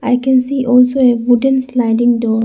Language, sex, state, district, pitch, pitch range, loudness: English, female, Arunachal Pradesh, Lower Dibang Valley, 250 Hz, 240-260 Hz, -13 LUFS